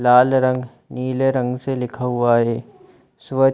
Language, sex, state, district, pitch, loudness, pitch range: Hindi, female, Chhattisgarh, Bilaspur, 125 Hz, -19 LUFS, 125-130 Hz